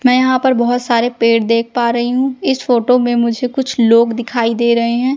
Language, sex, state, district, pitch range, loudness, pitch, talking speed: Hindi, female, Madhya Pradesh, Katni, 235-250 Hz, -14 LUFS, 240 Hz, 230 wpm